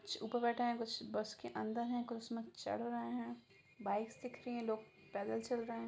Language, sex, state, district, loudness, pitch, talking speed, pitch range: Hindi, female, Bihar, Sitamarhi, -42 LUFS, 235 Hz, 235 wpm, 230-240 Hz